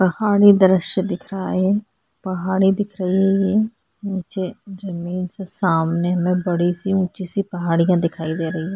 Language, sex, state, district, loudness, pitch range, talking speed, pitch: Hindi, female, Uttarakhand, Tehri Garhwal, -19 LUFS, 175-195 Hz, 150 wpm, 185 Hz